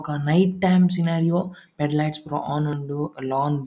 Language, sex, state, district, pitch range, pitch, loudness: Tulu, male, Karnataka, Dakshina Kannada, 145-175 Hz, 150 Hz, -23 LUFS